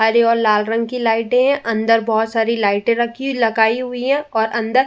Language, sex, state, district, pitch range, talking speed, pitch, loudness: Hindi, female, Uttar Pradesh, Jyotiba Phule Nagar, 225-245 Hz, 210 wpm, 230 Hz, -17 LUFS